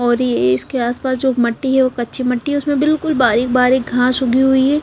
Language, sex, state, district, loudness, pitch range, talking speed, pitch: Hindi, female, Punjab, Kapurthala, -16 LUFS, 245-265 Hz, 235 wpm, 255 Hz